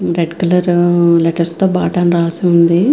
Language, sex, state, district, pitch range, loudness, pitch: Telugu, female, Andhra Pradesh, Visakhapatnam, 170-180 Hz, -13 LUFS, 175 Hz